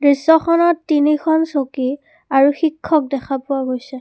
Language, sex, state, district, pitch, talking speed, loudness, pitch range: Assamese, female, Assam, Kamrup Metropolitan, 290 Hz, 120 wpm, -17 LUFS, 270-320 Hz